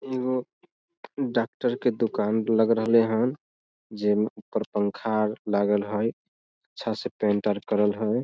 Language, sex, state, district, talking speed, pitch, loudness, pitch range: Maithili, male, Bihar, Samastipur, 145 wpm, 110 Hz, -26 LUFS, 105-120 Hz